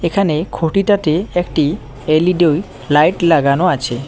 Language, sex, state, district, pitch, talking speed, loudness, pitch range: Bengali, male, West Bengal, Cooch Behar, 160 Hz, 105 wpm, -15 LUFS, 145-180 Hz